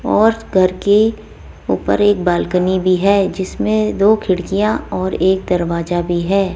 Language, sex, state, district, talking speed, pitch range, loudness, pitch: Hindi, female, Rajasthan, Jaipur, 145 wpm, 185-205 Hz, -16 LUFS, 190 Hz